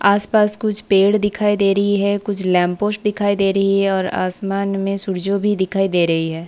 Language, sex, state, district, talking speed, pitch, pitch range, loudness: Hindi, female, Bihar, Saharsa, 215 wpm, 195 Hz, 190-205 Hz, -18 LUFS